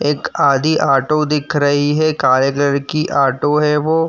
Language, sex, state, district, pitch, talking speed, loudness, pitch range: Hindi, male, Uttar Pradesh, Jyotiba Phule Nagar, 150 Hz, 175 wpm, -15 LUFS, 140-155 Hz